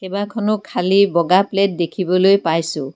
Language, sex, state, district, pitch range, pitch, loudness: Assamese, female, Assam, Kamrup Metropolitan, 170-200 Hz, 190 Hz, -17 LUFS